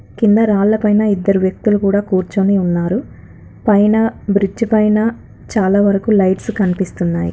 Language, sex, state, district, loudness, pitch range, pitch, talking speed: Telugu, female, Telangana, Karimnagar, -15 LUFS, 190-215 Hz, 200 Hz, 125 wpm